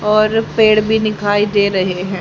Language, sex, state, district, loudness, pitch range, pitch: Hindi, female, Haryana, Jhajjar, -14 LUFS, 200-215 Hz, 210 Hz